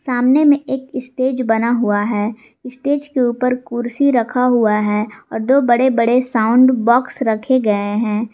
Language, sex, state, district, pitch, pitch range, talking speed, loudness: Hindi, female, Jharkhand, Garhwa, 245 Hz, 225-260 Hz, 165 wpm, -16 LUFS